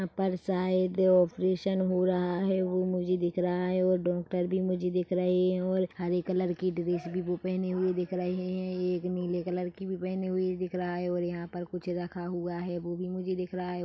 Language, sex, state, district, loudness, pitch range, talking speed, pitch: Hindi, female, Chhattisgarh, Bilaspur, -30 LUFS, 180-185 Hz, 215 wpm, 180 Hz